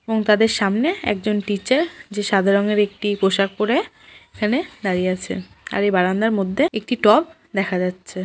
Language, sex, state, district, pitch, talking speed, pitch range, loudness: Bengali, female, West Bengal, Jhargram, 205 Hz, 160 wpm, 195-225 Hz, -20 LUFS